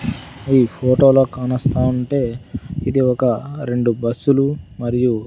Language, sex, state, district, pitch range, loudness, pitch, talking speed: Telugu, male, Andhra Pradesh, Sri Satya Sai, 120-135 Hz, -18 LUFS, 130 Hz, 90 wpm